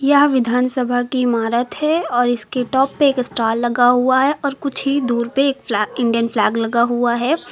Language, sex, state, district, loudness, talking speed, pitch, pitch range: Hindi, female, Uttar Pradesh, Lucknow, -17 LUFS, 205 wpm, 245 Hz, 235-275 Hz